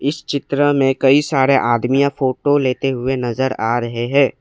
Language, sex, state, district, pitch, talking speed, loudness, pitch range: Hindi, male, Assam, Kamrup Metropolitan, 135 Hz, 175 wpm, -17 LUFS, 130-140 Hz